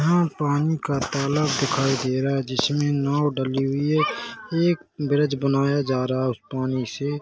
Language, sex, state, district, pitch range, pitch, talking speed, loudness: Hindi, male, Chhattisgarh, Korba, 135-150 Hz, 140 Hz, 185 wpm, -23 LUFS